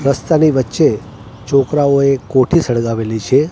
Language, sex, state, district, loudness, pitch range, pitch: Gujarati, male, Gujarat, Gandhinagar, -14 LUFS, 115-140 Hz, 135 Hz